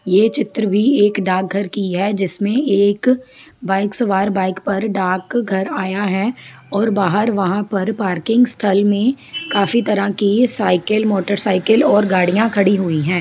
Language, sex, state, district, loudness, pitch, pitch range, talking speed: Hindi, female, Jharkhand, Sahebganj, -17 LUFS, 200 Hz, 190-220 Hz, 160 wpm